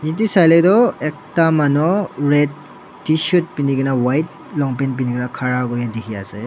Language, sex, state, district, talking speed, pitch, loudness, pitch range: Nagamese, male, Nagaland, Dimapur, 150 wpm, 145 Hz, -17 LUFS, 130-165 Hz